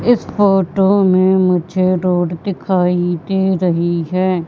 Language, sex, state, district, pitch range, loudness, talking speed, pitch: Hindi, female, Madhya Pradesh, Katni, 175-190 Hz, -15 LUFS, 120 wpm, 185 Hz